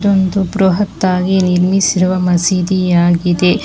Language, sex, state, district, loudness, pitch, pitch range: Kannada, female, Karnataka, Bangalore, -13 LUFS, 185 Hz, 180-190 Hz